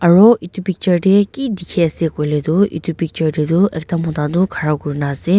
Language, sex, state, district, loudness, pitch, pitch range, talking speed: Nagamese, female, Nagaland, Dimapur, -16 LUFS, 170 Hz, 155-190 Hz, 210 wpm